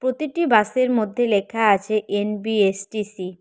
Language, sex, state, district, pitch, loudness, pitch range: Bengali, female, West Bengal, Cooch Behar, 215 Hz, -21 LUFS, 205-240 Hz